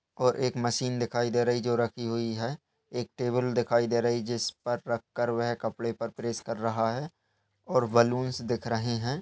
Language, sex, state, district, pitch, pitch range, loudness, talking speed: Hindi, male, Uttar Pradesh, Hamirpur, 120 Hz, 115-120 Hz, -29 LUFS, 195 wpm